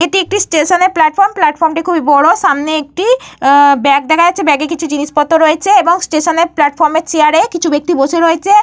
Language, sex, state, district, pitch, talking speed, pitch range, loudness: Bengali, female, Jharkhand, Jamtara, 325 Hz, 180 wpm, 305-355 Hz, -11 LUFS